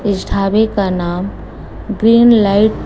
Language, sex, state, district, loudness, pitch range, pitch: Hindi, female, Chhattisgarh, Raipur, -13 LUFS, 195-220 Hz, 205 Hz